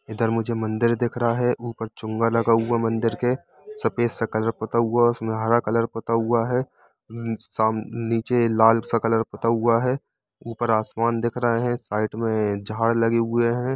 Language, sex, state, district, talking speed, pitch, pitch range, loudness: Hindi, male, Jharkhand, Jamtara, 185 wpm, 115 Hz, 115-120 Hz, -23 LUFS